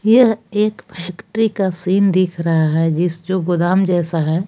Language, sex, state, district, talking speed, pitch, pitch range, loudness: Hindi, female, Jharkhand, Palamu, 175 wpm, 180 Hz, 170-200 Hz, -17 LUFS